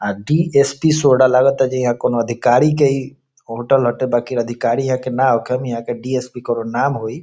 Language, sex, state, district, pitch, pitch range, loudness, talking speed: Bhojpuri, male, Bihar, Saran, 130 Hz, 120-135 Hz, -17 LUFS, 185 wpm